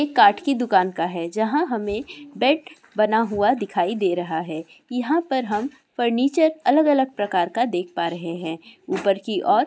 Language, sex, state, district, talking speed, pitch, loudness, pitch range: Hindi, female, Bihar, Purnia, 180 wpm, 220 Hz, -22 LUFS, 180-275 Hz